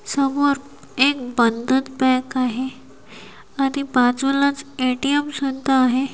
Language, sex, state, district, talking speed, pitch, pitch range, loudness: Marathi, female, Maharashtra, Washim, 100 wpm, 270 Hz, 255-280 Hz, -20 LUFS